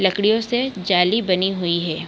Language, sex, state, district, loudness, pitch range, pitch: Hindi, female, Bihar, Kishanganj, -19 LUFS, 180-220 Hz, 190 Hz